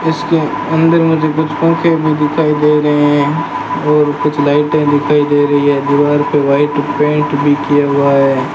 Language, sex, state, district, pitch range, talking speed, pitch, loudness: Hindi, male, Rajasthan, Bikaner, 145-155 Hz, 175 wpm, 145 Hz, -12 LUFS